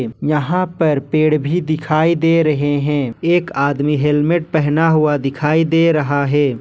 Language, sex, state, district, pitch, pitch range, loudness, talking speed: Hindi, male, Jharkhand, Ranchi, 155 Hz, 145-165 Hz, -16 LUFS, 155 wpm